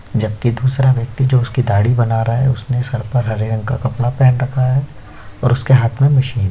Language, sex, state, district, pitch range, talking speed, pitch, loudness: Hindi, male, Chhattisgarh, Korba, 115-130 Hz, 230 wpm, 125 Hz, -16 LUFS